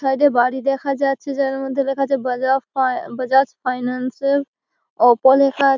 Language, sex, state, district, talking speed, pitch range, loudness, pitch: Bengali, female, West Bengal, Malda, 185 wpm, 260-275 Hz, -18 LUFS, 270 Hz